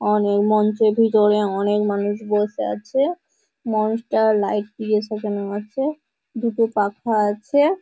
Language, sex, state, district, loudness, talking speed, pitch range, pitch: Bengali, female, West Bengal, Malda, -20 LUFS, 115 wpm, 210-230 Hz, 215 Hz